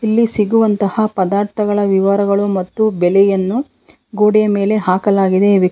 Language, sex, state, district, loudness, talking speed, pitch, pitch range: Kannada, female, Karnataka, Bangalore, -14 LUFS, 115 wpm, 205 Hz, 195-215 Hz